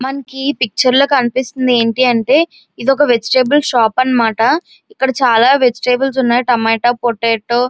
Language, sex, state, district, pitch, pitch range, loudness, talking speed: Telugu, female, Andhra Pradesh, Visakhapatnam, 255 Hz, 240-270 Hz, -13 LUFS, 150 wpm